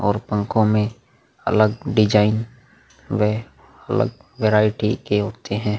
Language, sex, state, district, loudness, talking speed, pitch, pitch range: Hindi, male, Bihar, Vaishali, -20 LUFS, 115 wpm, 105 Hz, 105-115 Hz